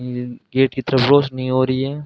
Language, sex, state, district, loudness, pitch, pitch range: Hindi, male, Rajasthan, Bikaner, -18 LUFS, 130 Hz, 130-135 Hz